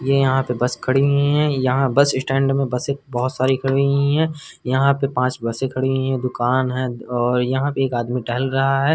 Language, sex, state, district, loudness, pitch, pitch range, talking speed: Hindi, male, Uttar Pradesh, Hamirpur, -19 LUFS, 130 Hz, 125-135 Hz, 215 wpm